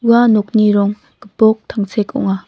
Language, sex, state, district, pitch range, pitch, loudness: Garo, female, Meghalaya, North Garo Hills, 205-225 Hz, 215 Hz, -14 LUFS